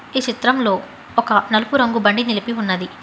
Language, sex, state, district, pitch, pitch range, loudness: Telugu, female, Telangana, Hyderabad, 230 Hz, 205-245 Hz, -18 LUFS